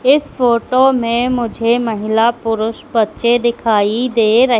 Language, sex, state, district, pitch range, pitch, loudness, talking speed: Hindi, female, Madhya Pradesh, Katni, 225-245 Hz, 235 Hz, -15 LUFS, 130 wpm